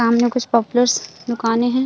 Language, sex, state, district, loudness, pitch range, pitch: Hindi, female, Chhattisgarh, Bilaspur, -18 LUFS, 235-245 Hz, 240 Hz